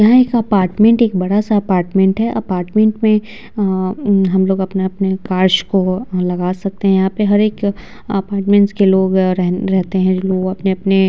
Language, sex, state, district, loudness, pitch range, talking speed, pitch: Hindi, female, Bihar, Vaishali, -15 LUFS, 185-210 Hz, 185 wpm, 195 Hz